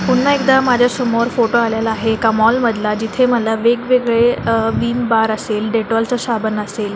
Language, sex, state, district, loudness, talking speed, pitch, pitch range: Marathi, female, Maharashtra, Dhule, -15 LUFS, 170 wpm, 230 Hz, 220-245 Hz